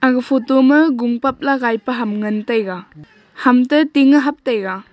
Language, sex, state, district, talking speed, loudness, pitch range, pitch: Wancho, female, Arunachal Pradesh, Longding, 185 wpm, -15 LUFS, 220-275 Hz, 250 Hz